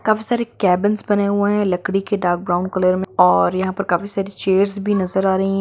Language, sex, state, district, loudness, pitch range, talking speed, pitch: Hindi, female, Bihar, Gopalganj, -18 LUFS, 185-205 Hz, 245 wpm, 195 Hz